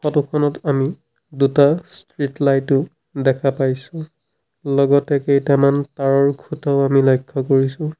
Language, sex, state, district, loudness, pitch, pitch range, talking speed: Assamese, male, Assam, Sonitpur, -18 LUFS, 140 Hz, 135-150 Hz, 115 wpm